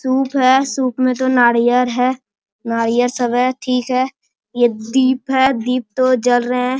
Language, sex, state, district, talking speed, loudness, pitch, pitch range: Hindi, male, Bihar, Bhagalpur, 195 wpm, -16 LUFS, 255 Hz, 245-260 Hz